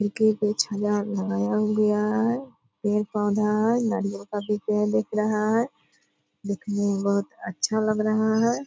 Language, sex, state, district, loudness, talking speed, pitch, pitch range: Hindi, female, Bihar, Purnia, -25 LUFS, 150 wpm, 210 Hz, 205-220 Hz